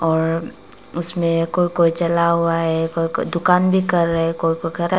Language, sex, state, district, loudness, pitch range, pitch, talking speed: Hindi, female, Arunachal Pradesh, Papum Pare, -19 LUFS, 165-170 Hz, 170 Hz, 215 wpm